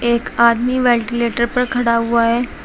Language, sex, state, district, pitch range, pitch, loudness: Hindi, female, Uttar Pradesh, Shamli, 235-245 Hz, 235 Hz, -16 LUFS